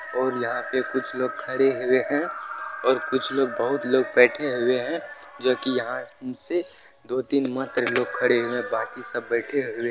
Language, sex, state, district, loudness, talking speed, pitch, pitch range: Maithili, male, Bihar, Supaul, -23 LUFS, 190 wpm, 130 Hz, 125-135 Hz